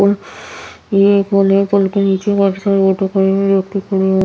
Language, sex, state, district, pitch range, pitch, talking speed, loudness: Hindi, female, Bihar, Patna, 195-200 Hz, 195 Hz, 210 wpm, -14 LUFS